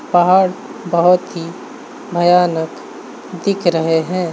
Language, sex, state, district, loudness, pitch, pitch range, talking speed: Hindi, male, Bihar, Saharsa, -15 LUFS, 175 Hz, 170-180 Hz, 95 wpm